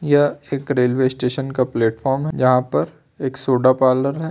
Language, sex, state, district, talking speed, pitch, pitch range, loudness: Hindi, male, Andhra Pradesh, Anantapur, 180 wpm, 135 Hz, 130-145 Hz, -19 LUFS